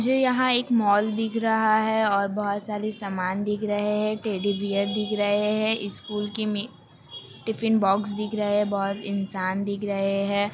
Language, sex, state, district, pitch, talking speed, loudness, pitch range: Hindi, female, Bihar, Kishanganj, 205 Hz, 180 wpm, -25 LUFS, 200-215 Hz